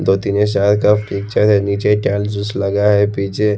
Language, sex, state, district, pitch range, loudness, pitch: Hindi, male, Haryana, Rohtak, 100-105 Hz, -15 LUFS, 100 Hz